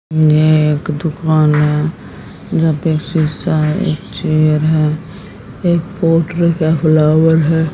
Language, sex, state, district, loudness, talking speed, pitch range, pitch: Hindi, female, Haryana, Jhajjar, -14 LUFS, 130 wpm, 155-165 Hz, 155 Hz